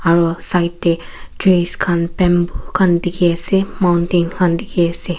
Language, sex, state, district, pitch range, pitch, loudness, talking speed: Nagamese, female, Nagaland, Kohima, 170-180 Hz, 175 Hz, -16 LUFS, 150 wpm